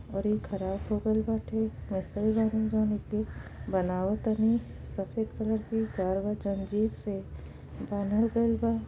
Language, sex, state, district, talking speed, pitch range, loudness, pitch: Bhojpuri, female, Uttar Pradesh, Gorakhpur, 190 wpm, 200-220 Hz, -30 LUFS, 215 Hz